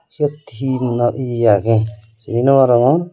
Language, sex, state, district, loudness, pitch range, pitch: Chakma, male, Tripura, Dhalai, -16 LUFS, 115-135 Hz, 120 Hz